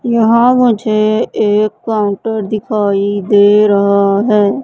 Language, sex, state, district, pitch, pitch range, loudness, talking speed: Hindi, female, Madhya Pradesh, Katni, 215 Hz, 205-225 Hz, -12 LUFS, 105 wpm